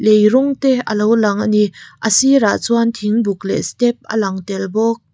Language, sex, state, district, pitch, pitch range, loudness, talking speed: Mizo, female, Mizoram, Aizawl, 220 Hz, 210-235 Hz, -15 LUFS, 200 wpm